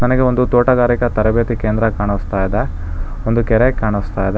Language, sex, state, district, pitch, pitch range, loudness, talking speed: Kannada, male, Karnataka, Bangalore, 110 Hz, 100-120 Hz, -16 LUFS, 165 wpm